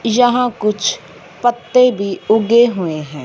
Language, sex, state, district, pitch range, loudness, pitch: Hindi, female, Punjab, Fazilka, 195-240 Hz, -15 LUFS, 220 Hz